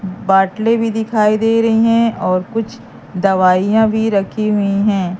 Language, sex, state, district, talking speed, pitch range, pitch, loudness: Hindi, female, Madhya Pradesh, Katni, 150 wpm, 195-225 Hz, 210 Hz, -15 LUFS